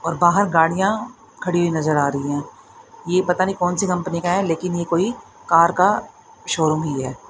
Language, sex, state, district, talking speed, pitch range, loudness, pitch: Hindi, female, Haryana, Rohtak, 195 wpm, 165-195 Hz, -20 LUFS, 175 Hz